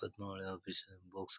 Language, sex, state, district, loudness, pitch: Kannada, male, Karnataka, Bijapur, -45 LUFS, 95 Hz